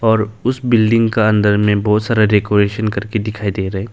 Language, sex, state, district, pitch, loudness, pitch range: Hindi, male, Arunachal Pradesh, Longding, 105 Hz, -15 LUFS, 105-110 Hz